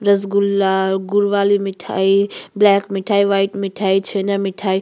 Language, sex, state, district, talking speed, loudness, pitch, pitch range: Hindi, female, Chhattisgarh, Sukma, 135 wpm, -17 LUFS, 195 Hz, 195-200 Hz